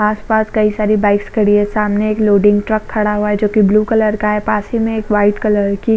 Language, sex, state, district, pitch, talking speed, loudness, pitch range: Hindi, female, Maharashtra, Chandrapur, 210 Hz, 260 wpm, -14 LUFS, 205-215 Hz